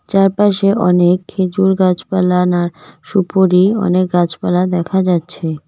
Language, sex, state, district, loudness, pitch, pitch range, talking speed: Bengali, female, West Bengal, Cooch Behar, -14 LUFS, 180 Hz, 180-190 Hz, 105 wpm